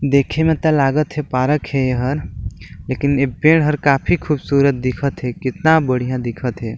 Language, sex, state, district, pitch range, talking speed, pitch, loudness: Chhattisgarhi, male, Chhattisgarh, Balrampur, 130-150 Hz, 175 wpm, 140 Hz, -17 LUFS